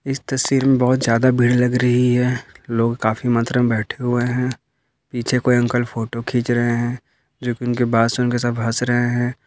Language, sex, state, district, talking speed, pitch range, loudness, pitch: Hindi, male, Maharashtra, Dhule, 205 wpm, 120-125 Hz, -19 LUFS, 120 Hz